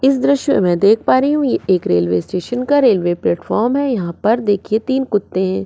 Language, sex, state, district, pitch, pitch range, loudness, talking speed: Hindi, female, Goa, North and South Goa, 210 Hz, 180-265 Hz, -16 LUFS, 200 wpm